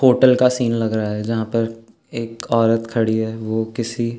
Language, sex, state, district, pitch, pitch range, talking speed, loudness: Hindi, male, Uttarakhand, Tehri Garhwal, 115 Hz, 110-120 Hz, 200 wpm, -19 LUFS